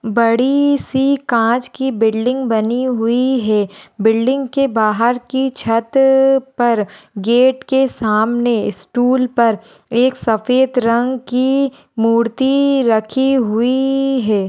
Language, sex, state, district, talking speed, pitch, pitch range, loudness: Hindi, female, Maharashtra, Pune, 110 wpm, 245 Hz, 225-265 Hz, -15 LUFS